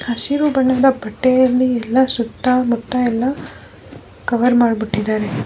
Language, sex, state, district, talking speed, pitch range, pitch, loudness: Kannada, female, Karnataka, Bellary, 110 wpm, 230-260 Hz, 245 Hz, -16 LUFS